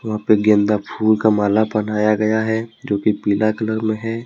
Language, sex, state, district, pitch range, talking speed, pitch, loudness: Hindi, male, Jharkhand, Deoghar, 105-110 Hz, 210 wpm, 110 Hz, -18 LUFS